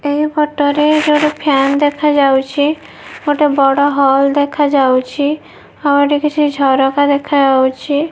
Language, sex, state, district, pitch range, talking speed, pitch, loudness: Odia, female, Odisha, Nuapada, 275-295 Hz, 120 wpm, 285 Hz, -13 LUFS